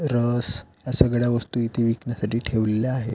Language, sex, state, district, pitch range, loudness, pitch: Marathi, male, Maharashtra, Pune, 110-120 Hz, -24 LUFS, 120 Hz